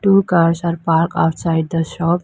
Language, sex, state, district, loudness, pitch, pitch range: English, female, Arunachal Pradesh, Lower Dibang Valley, -17 LUFS, 170 Hz, 165-175 Hz